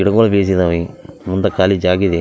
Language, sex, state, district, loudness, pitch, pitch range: Kannada, male, Karnataka, Raichur, -15 LUFS, 95 Hz, 90-100 Hz